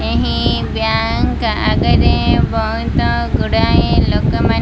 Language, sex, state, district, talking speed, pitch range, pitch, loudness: Odia, female, Odisha, Malkangiri, 105 wpm, 80-95 Hz, 80 Hz, -15 LUFS